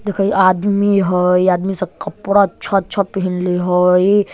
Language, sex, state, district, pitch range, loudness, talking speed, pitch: Bajjika, male, Bihar, Vaishali, 180-200 Hz, -15 LUFS, 150 wpm, 190 Hz